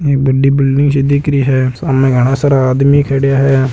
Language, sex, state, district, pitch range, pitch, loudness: Hindi, male, Rajasthan, Nagaur, 135-140 Hz, 135 Hz, -11 LUFS